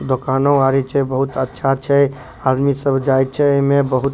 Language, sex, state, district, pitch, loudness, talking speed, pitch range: Maithili, male, Bihar, Supaul, 135 Hz, -16 LUFS, 175 wpm, 130-140 Hz